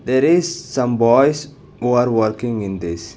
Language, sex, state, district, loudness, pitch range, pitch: English, male, Karnataka, Bangalore, -17 LUFS, 110-140 Hz, 120 Hz